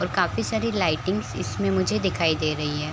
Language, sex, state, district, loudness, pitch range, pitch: Hindi, female, Chhattisgarh, Raigarh, -24 LUFS, 100-155 Hz, 150 Hz